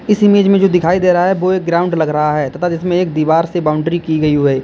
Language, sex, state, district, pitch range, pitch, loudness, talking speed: Hindi, male, Uttar Pradesh, Lalitpur, 155-185 Hz, 170 Hz, -13 LUFS, 310 wpm